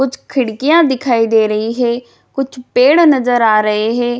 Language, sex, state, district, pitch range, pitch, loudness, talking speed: Hindi, female, Bihar, Jamui, 225-270 Hz, 245 Hz, -13 LUFS, 170 wpm